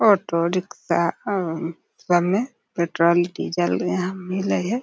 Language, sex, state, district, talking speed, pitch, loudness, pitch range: Maithili, female, Bihar, Darbhanga, 125 wpm, 180 Hz, -22 LUFS, 170-195 Hz